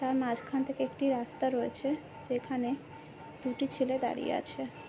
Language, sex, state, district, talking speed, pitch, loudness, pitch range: Bengali, female, West Bengal, Jhargram, 135 wpm, 255 Hz, -34 LUFS, 235-265 Hz